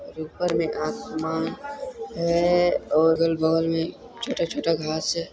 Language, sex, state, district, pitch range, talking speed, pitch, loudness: Hindi, male, Chhattisgarh, Sarguja, 160-175 Hz, 125 wpm, 165 Hz, -24 LUFS